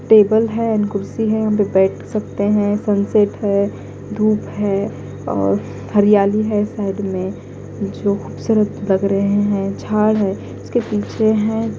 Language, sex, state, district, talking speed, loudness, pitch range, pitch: Hindi, female, Punjab, Kapurthala, 140 wpm, -18 LUFS, 200-215 Hz, 205 Hz